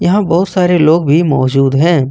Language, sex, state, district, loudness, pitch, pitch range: Hindi, male, Jharkhand, Ranchi, -11 LUFS, 165 Hz, 140-175 Hz